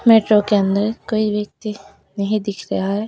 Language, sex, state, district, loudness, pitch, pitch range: Hindi, female, Uttar Pradesh, Lucknow, -19 LUFS, 210 Hz, 200-215 Hz